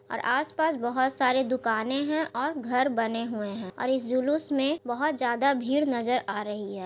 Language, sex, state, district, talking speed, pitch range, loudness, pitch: Hindi, female, Bihar, Gaya, 195 wpm, 230-280 Hz, -27 LUFS, 255 Hz